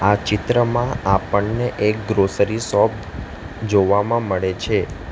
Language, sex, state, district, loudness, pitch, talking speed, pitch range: Gujarati, male, Gujarat, Valsad, -19 LUFS, 105 Hz, 105 wpm, 100-115 Hz